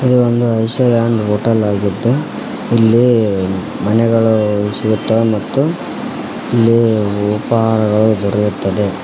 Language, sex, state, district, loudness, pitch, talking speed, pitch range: Kannada, male, Karnataka, Koppal, -14 LUFS, 110 Hz, 80 wpm, 105-115 Hz